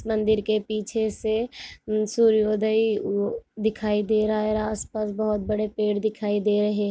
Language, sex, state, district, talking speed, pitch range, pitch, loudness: Hindi, female, Andhra Pradesh, Chittoor, 155 wpm, 210-220 Hz, 215 Hz, -24 LUFS